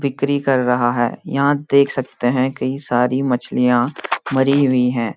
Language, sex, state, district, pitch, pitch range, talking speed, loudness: Hindi, male, Uttarakhand, Uttarkashi, 130 Hz, 125-140 Hz, 160 wpm, -18 LUFS